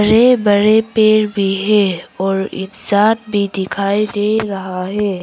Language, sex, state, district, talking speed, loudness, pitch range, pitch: Hindi, female, Arunachal Pradesh, Papum Pare, 150 wpm, -15 LUFS, 195-215 Hz, 205 Hz